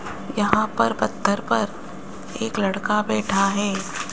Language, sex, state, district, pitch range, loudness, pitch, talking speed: Hindi, male, Rajasthan, Jaipur, 195-215 Hz, -22 LUFS, 205 Hz, 115 wpm